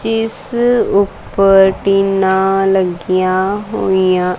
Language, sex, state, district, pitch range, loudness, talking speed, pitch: Punjabi, female, Punjab, Kapurthala, 190-200 Hz, -13 LUFS, 70 wpm, 195 Hz